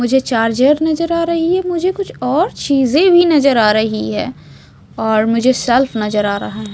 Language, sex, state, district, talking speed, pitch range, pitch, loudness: Hindi, female, Odisha, Sambalpur, 195 wpm, 220-330 Hz, 260 Hz, -14 LUFS